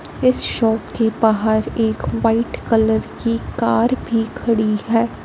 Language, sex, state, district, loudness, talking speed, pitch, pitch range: Hindi, female, Punjab, Fazilka, -18 LUFS, 135 wpm, 225 Hz, 220-230 Hz